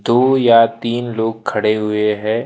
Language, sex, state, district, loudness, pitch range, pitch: Hindi, male, Madhya Pradesh, Bhopal, -15 LUFS, 105-120 Hz, 115 Hz